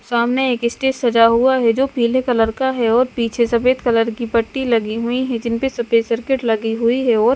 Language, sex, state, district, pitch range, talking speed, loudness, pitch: Hindi, female, Bihar, Katihar, 230-255 Hz, 220 wpm, -17 LUFS, 235 Hz